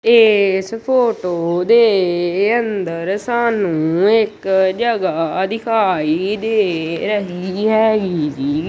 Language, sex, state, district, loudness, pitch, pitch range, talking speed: Punjabi, male, Punjab, Kapurthala, -16 LUFS, 195 Hz, 175-220 Hz, 85 wpm